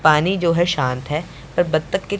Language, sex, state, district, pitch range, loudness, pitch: Hindi, male, Punjab, Pathankot, 150-175 Hz, -20 LUFS, 155 Hz